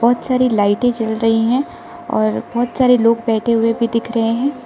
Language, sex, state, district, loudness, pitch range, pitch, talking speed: Hindi, female, Arunachal Pradesh, Lower Dibang Valley, -16 LUFS, 225-245 Hz, 230 Hz, 205 wpm